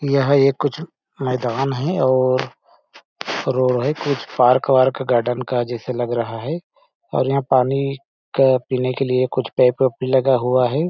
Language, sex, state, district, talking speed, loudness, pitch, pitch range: Hindi, male, Chhattisgarh, Balrampur, 170 wpm, -19 LUFS, 130 Hz, 125-135 Hz